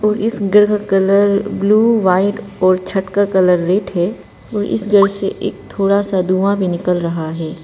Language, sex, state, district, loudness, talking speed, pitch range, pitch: Hindi, female, Arunachal Pradesh, Papum Pare, -15 LUFS, 195 wpm, 185-205 Hz, 195 Hz